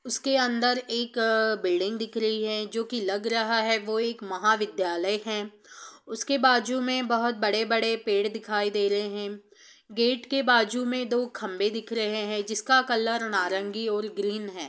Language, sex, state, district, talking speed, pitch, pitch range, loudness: Hindi, female, Bihar, Saran, 165 wpm, 225 Hz, 210-240 Hz, -26 LUFS